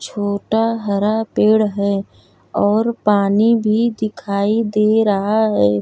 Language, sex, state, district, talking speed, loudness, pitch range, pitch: Bhojpuri, female, Uttar Pradesh, Gorakhpur, 115 wpm, -17 LUFS, 200-220 Hz, 215 Hz